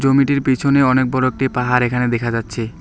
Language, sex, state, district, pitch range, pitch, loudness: Bengali, male, West Bengal, Alipurduar, 120-135 Hz, 130 Hz, -17 LUFS